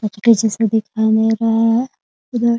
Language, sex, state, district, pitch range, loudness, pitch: Hindi, female, Bihar, Muzaffarpur, 220-235 Hz, -16 LUFS, 225 Hz